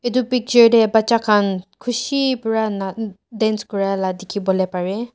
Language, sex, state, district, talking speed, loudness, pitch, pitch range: Nagamese, female, Nagaland, Dimapur, 165 wpm, -18 LUFS, 220 Hz, 195-235 Hz